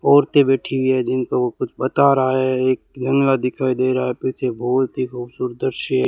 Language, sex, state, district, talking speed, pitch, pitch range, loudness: Hindi, male, Rajasthan, Bikaner, 215 wpm, 130 Hz, 125-130 Hz, -19 LUFS